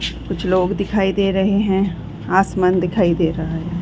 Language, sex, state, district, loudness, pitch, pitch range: Hindi, female, Chhattisgarh, Bilaspur, -18 LUFS, 185 Hz, 175-195 Hz